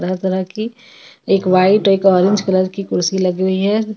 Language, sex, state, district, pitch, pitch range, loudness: Hindi, female, Jharkhand, Ranchi, 190 Hz, 185-205 Hz, -15 LUFS